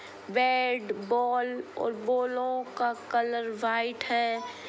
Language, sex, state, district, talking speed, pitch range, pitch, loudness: Hindi, female, Bihar, Saran, 100 wpm, 235-250 Hz, 240 Hz, -29 LUFS